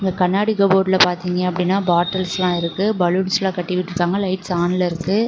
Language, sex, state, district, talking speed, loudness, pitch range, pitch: Tamil, female, Tamil Nadu, Namakkal, 150 wpm, -18 LUFS, 180-190 Hz, 180 Hz